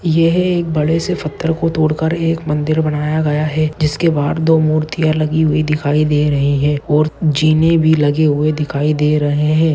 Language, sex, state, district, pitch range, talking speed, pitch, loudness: Hindi, male, Maharashtra, Dhule, 150-160 Hz, 185 wpm, 155 Hz, -15 LUFS